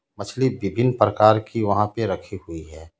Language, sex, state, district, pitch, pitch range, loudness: Hindi, male, Jharkhand, Ranchi, 105 Hz, 95-115 Hz, -21 LUFS